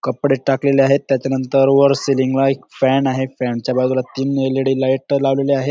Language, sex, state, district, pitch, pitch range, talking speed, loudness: Marathi, male, Maharashtra, Dhule, 135 Hz, 130-140 Hz, 190 wpm, -17 LUFS